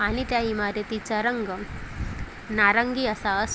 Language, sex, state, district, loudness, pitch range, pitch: Marathi, female, Maharashtra, Chandrapur, -25 LUFS, 205-235 Hz, 215 Hz